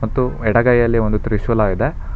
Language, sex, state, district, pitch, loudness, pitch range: Kannada, male, Karnataka, Bangalore, 115 Hz, -17 LUFS, 105-120 Hz